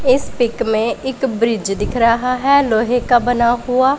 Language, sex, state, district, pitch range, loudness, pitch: Hindi, female, Punjab, Pathankot, 230-260 Hz, -16 LUFS, 245 Hz